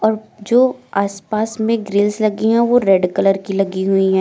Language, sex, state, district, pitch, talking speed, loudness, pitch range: Hindi, female, Uttar Pradesh, Lucknow, 205 Hz, 200 wpm, -16 LUFS, 195-220 Hz